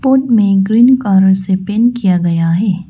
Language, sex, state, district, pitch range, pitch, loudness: Hindi, female, Arunachal Pradesh, Lower Dibang Valley, 190-235 Hz, 195 Hz, -12 LUFS